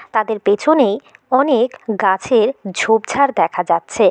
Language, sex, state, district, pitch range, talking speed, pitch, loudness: Bengali, female, West Bengal, Jalpaiguri, 210-265 Hz, 115 wpm, 225 Hz, -16 LUFS